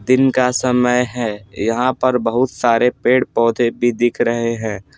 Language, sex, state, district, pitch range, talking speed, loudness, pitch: Hindi, male, Bihar, Patna, 115-125 Hz, 155 wpm, -17 LUFS, 120 Hz